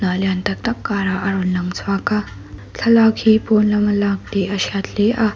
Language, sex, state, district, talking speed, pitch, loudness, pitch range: Mizo, female, Mizoram, Aizawl, 200 wpm, 200 Hz, -18 LUFS, 185-215 Hz